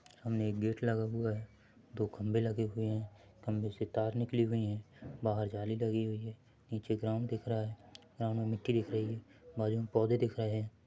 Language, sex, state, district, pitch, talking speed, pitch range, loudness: Hindi, male, Chhattisgarh, Bilaspur, 110 Hz, 215 wpm, 110-115 Hz, -36 LUFS